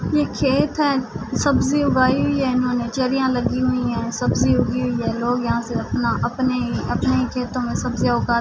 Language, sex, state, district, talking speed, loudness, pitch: Urdu, female, Andhra Pradesh, Anantapur, 185 wpm, -20 LUFS, 245 Hz